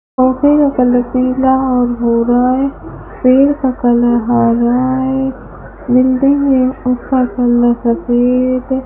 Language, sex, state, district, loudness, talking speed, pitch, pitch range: Hindi, female, Rajasthan, Bikaner, -13 LUFS, 120 wpm, 255 Hz, 245-265 Hz